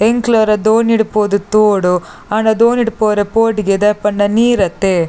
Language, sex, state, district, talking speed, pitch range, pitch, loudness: Tulu, female, Karnataka, Dakshina Kannada, 155 wpm, 205-225 Hz, 215 Hz, -13 LUFS